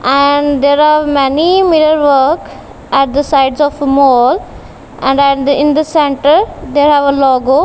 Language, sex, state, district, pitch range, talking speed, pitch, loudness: English, female, Punjab, Kapurthala, 275-295 Hz, 155 wpm, 285 Hz, -10 LUFS